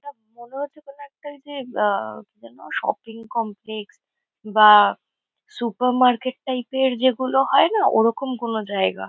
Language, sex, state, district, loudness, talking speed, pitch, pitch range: Bengali, female, West Bengal, Kolkata, -20 LUFS, 150 wpm, 245 Hz, 215-270 Hz